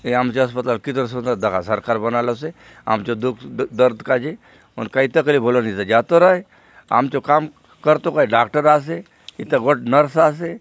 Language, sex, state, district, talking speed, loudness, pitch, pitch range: Halbi, male, Chhattisgarh, Bastar, 165 wpm, -18 LUFS, 125 Hz, 120-150 Hz